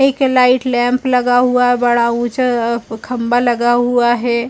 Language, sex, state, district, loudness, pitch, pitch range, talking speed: Hindi, female, Chhattisgarh, Bilaspur, -14 LUFS, 245 Hz, 240-250 Hz, 160 wpm